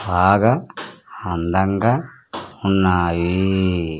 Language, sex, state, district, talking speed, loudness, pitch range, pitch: Telugu, male, Andhra Pradesh, Sri Satya Sai, 45 wpm, -19 LUFS, 90-100 Hz, 95 Hz